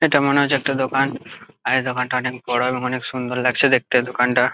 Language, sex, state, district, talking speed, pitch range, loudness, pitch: Bengali, male, West Bengal, Jalpaiguri, 200 wpm, 125-135 Hz, -20 LUFS, 125 Hz